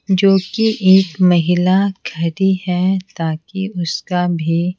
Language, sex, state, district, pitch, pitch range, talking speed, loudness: Hindi, female, Bihar, Patna, 185 Hz, 175-190 Hz, 115 wpm, -16 LUFS